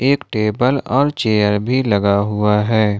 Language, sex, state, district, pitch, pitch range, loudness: Hindi, male, Jharkhand, Ranchi, 110 Hz, 105-130 Hz, -16 LUFS